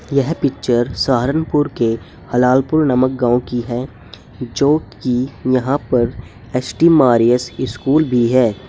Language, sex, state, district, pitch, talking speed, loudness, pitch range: Hindi, male, Uttar Pradesh, Saharanpur, 125 Hz, 130 wpm, -16 LUFS, 120-135 Hz